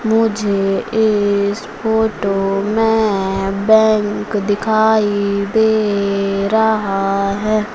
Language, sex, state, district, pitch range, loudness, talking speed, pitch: Hindi, female, Madhya Pradesh, Umaria, 200-220 Hz, -16 LUFS, 70 wpm, 210 Hz